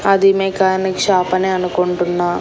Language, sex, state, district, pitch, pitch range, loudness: Telugu, female, Andhra Pradesh, Annamaya, 185 Hz, 180-195 Hz, -16 LUFS